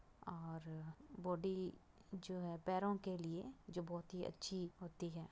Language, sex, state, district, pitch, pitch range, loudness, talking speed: Hindi, female, Uttar Pradesh, Budaun, 180 Hz, 170-185 Hz, -47 LUFS, 145 wpm